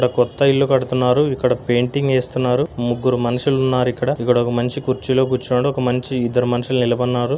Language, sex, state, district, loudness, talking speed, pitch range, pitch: Telugu, male, Andhra Pradesh, Anantapur, -18 LUFS, 145 wpm, 125-130 Hz, 125 Hz